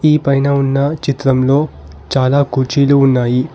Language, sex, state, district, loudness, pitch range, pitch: Telugu, male, Telangana, Hyderabad, -14 LUFS, 130-140 Hz, 140 Hz